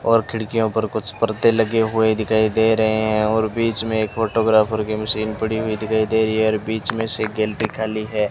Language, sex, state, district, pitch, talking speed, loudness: Hindi, male, Rajasthan, Bikaner, 110 Hz, 225 wpm, -19 LUFS